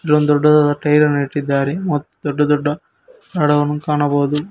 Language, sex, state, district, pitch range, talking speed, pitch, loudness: Kannada, male, Karnataka, Koppal, 145-150 Hz, 135 wpm, 150 Hz, -16 LUFS